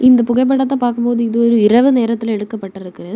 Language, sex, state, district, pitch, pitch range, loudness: Tamil, female, Tamil Nadu, Kanyakumari, 235 Hz, 225-250 Hz, -14 LUFS